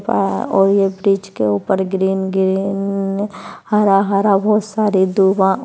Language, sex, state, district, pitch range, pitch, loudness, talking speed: Hindi, female, Bihar, Kishanganj, 190-200 Hz, 195 Hz, -16 LUFS, 140 wpm